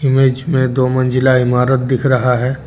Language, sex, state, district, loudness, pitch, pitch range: Hindi, male, Jharkhand, Deoghar, -14 LUFS, 130 Hz, 125-135 Hz